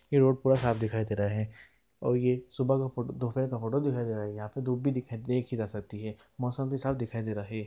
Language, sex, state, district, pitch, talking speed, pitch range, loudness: Hindi, male, Bihar, East Champaran, 125 Hz, 265 wpm, 110-130 Hz, -31 LUFS